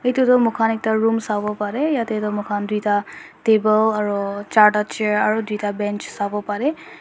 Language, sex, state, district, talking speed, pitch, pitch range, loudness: Nagamese, female, Nagaland, Dimapur, 170 wpm, 215 Hz, 205-225 Hz, -20 LUFS